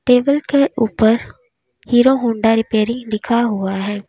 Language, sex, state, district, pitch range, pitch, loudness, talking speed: Hindi, female, Uttar Pradesh, Lalitpur, 220-250 Hz, 235 Hz, -16 LUFS, 130 wpm